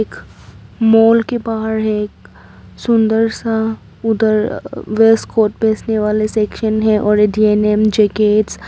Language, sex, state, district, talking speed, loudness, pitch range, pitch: Hindi, female, Arunachal Pradesh, Papum Pare, 125 wpm, -15 LUFS, 215-225 Hz, 220 Hz